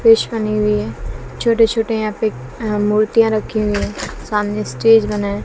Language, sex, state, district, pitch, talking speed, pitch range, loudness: Hindi, female, Bihar, West Champaran, 215 Hz, 185 wpm, 205-225 Hz, -17 LUFS